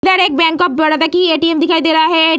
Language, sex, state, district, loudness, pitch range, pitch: Hindi, female, Bihar, Lakhisarai, -12 LUFS, 320-345 Hz, 325 Hz